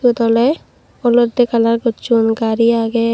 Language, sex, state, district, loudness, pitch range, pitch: Chakma, female, Tripura, Dhalai, -15 LUFS, 230-240 Hz, 230 Hz